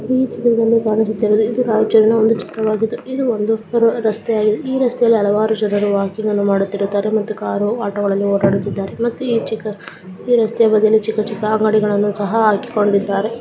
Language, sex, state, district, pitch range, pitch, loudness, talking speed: Kannada, male, Karnataka, Raichur, 205-230 Hz, 215 Hz, -16 LUFS, 140 wpm